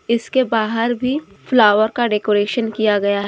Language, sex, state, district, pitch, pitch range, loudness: Hindi, female, Jharkhand, Deoghar, 225 Hz, 210-240 Hz, -17 LUFS